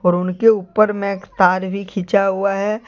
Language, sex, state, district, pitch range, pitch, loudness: Hindi, male, Jharkhand, Deoghar, 185-210 Hz, 195 Hz, -17 LUFS